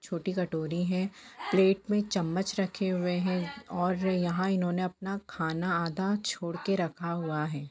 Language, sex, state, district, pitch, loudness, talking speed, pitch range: Hindi, female, Bihar, Sitamarhi, 185 Hz, -30 LUFS, 150 wpm, 170-190 Hz